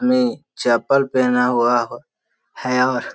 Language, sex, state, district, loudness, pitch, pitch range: Hindi, male, Bihar, Jahanabad, -18 LUFS, 125 Hz, 120-135 Hz